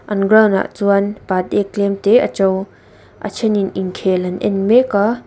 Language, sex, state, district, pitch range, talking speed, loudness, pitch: Mizo, female, Mizoram, Aizawl, 190-210 Hz, 180 wpm, -16 LUFS, 200 Hz